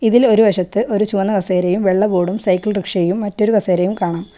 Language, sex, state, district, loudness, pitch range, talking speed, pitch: Malayalam, female, Kerala, Kollam, -16 LUFS, 185-210 Hz, 180 wpm, 200 Hz